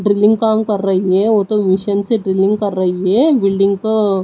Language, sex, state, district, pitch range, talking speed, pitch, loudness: Hindi, female, Odisha, Nuapada, 195-215 Hz, 210 wpm, 205 Hz, -14 LUFS